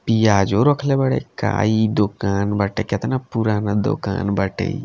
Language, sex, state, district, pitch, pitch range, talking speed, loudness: Bhojpuri, male, Bihar, Gopalganj, 110 Hz, 100-120 Hz, 135 wpm, -19 LUFS